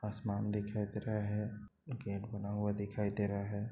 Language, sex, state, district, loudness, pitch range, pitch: Hindi, male, Chhattisgarh, Bastar, -39 LUFS, 100-105 Hz, 105 Hz